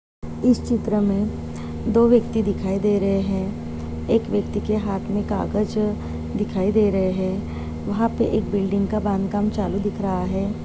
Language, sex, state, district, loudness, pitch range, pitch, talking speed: Hindi, female, Maharashtra, Dhule, -22 LUFS, 190-210 Hz, 200 Hz, 170 wpm